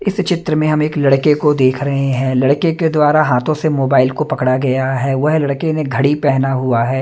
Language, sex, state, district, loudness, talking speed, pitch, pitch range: Hindi, male, Punjab, Kapurthala, -15 LUFS, 230 wpm, 140 Hz, 135-155 Hz